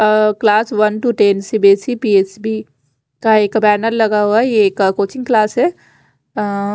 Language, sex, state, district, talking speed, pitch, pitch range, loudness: Hindi, female, Punjab, Fazilka, 175 wpm, 210 Hz, 200-220 Hz, -14 LUFS